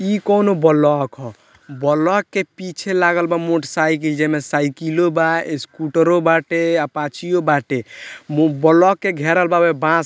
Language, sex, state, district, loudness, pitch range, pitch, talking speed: Bhojpuri, male, Bihar, Muzaffarpur, -17 LUFS, 150-175 Hz, 165 Hz, 150 wpm